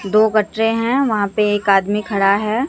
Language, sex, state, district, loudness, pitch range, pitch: Hindi, female, Bihar, Katihar, -16 LUFS, 205-225 Hz, 210 Hz